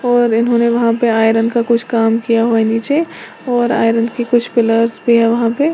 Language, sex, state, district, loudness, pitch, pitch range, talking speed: Hindi, female, Uttar Pradesh, Lalitpur, -14 LUFS, 235 Hz, 230-240 Hz, 210 wpm